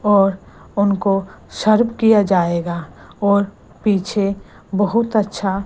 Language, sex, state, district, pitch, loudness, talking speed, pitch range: Hindi, female, Gujarat, Gandhinagar, 200 Hz, -18 LUFS, 95 wpm, 195-215 Hz